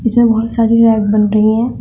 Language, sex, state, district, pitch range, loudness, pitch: Hindi, female, Uttar Pradesh, Shamli, 215-230 Hz, -12 LUFS, 225 Hz